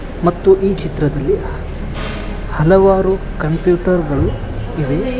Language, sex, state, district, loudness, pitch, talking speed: Kannada, male, Karnataka, Koppal, -16 LUFS, 165 Hz, 80 wpm